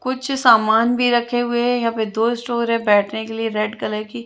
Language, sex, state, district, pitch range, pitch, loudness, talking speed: Hindi, female, Chandigarh, Chandigarh, 220-240 Hz, 230 Hz, -18 LUFS, 240 wpm